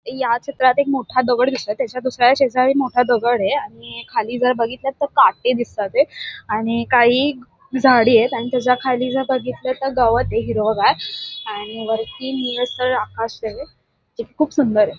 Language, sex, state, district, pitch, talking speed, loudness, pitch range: Marathi, female, Maharashtra, Dhule, 250 Hz, 160 wpm, -18 LUFS, 235-265 Hz